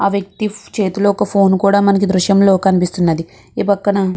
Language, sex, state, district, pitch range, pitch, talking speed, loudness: Telugu, female, Andhra Pradesh, Krishna, 185-200 Hz, 195 Hz, 185 wpm, -14 LUFS